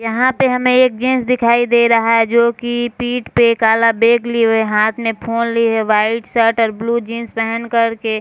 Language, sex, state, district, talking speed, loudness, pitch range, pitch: Hindi, female, Bihar, Sitamarhi, 225 wpm, -14 LUFS, 225-240 Hz, 230 Hz